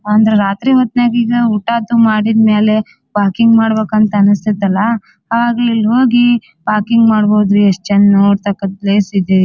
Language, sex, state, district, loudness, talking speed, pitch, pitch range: Kannada, female, Karnataka, Dharwad, -12 LUFS, 140 wpm, 215 Hz, 200-230 Hz